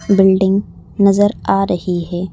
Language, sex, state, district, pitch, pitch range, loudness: Hindi, female, Madhya Pradesh, Bhopal, 195 Hz, 180-200 Hz, -15 LUFS